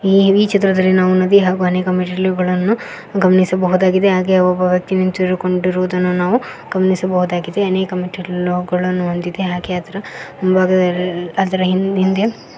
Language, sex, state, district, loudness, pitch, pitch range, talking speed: Kannada, female, Karnataka, Koppal, -16 LUFS, 185 Hz, 180-190 Hz, 115 wpm